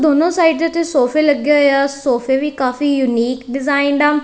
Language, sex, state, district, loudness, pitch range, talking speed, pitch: Punjabi, female, Punjab, Kapurthala, -15 LUFS, 265-300 Hz, 185 wpm, 285 Hz